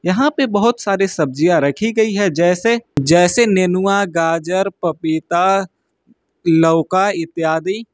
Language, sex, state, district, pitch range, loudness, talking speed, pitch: Hindi, male, Uttar Pradesh, Lucknow, 165-205 Hz, -16 LUFS, 115 wpm, 185 Hz